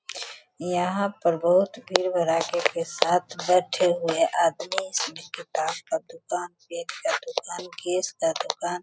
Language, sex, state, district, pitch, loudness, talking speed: Hindi, female, Bihar, Sitamarhi, 185 Hz, -26 LUFS, 140 wpm